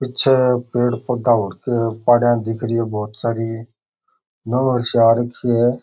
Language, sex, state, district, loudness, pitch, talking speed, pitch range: Rajasthani, male, Rajasthan, Churu, -18 LUFS, 120 Hz, 175 wpm, 115-125 Hz